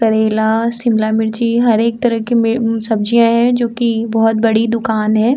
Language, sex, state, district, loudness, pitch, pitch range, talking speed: Hindi, female, Uttar Pradesh, Muzaffarnagar, -14 LUFS, 225 Hz, 220-235 Hz, 180 wpm